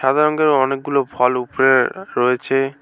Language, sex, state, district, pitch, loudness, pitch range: Bengali, male, West Bengal, Alipurduar, 135 Hz, -17 LUFS, 125-140 Hz